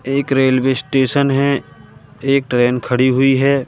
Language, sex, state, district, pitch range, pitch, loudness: Hindi, male, Madhya Pradesh, Katni, 130-140 Hz, 135 Hz, -15 LUFS